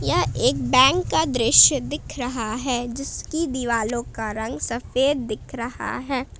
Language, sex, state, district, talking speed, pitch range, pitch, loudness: Hindi, female, Jharkhand, Palamu, 150 wpm, 225-265 Hz, 245 Hz, -21 LUFS